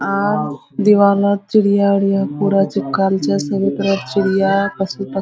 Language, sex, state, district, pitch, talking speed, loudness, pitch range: Hindi, female, Bihar, Araria, 195 Hz, 160 wpm, -16 LUFS, 195-200 Hz